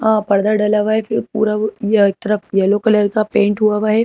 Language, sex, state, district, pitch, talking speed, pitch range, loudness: Hindi, female, Madhya Pradesh, Bhopal, 210 Hz, 190 wpm, 205-215 Hz, -16 LUFS